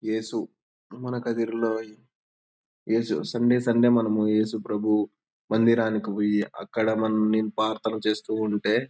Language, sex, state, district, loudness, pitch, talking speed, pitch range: Telugu, male, Andhra Pradesh, Anantapur, -25 LUFS, 110 Hz, 90 wpm, 110-115 Hz